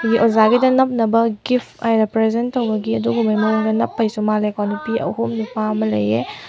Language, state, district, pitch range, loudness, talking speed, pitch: Manipuri, Manipur, Imphal West, 215-230 Hz, -18 LUFS, 140 wpm, 225 Hz